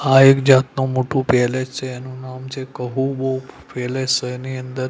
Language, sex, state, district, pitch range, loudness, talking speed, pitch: Gujarati, male, Gujarat, Gandhinagar, 130-135 Hz, -19 LUFS, 160 wpm, 130 Hz